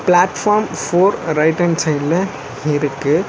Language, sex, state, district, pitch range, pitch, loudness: Tamil, male, Tamil Nadu, Chennai, 150-180 Hz, 160 Hz, -16 LUFS